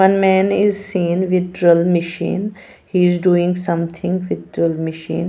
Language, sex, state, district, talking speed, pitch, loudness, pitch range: English, female, Punjab, Pathankot, 135 wpm, 180 Hz, -17 LUFS, 170-190 Hz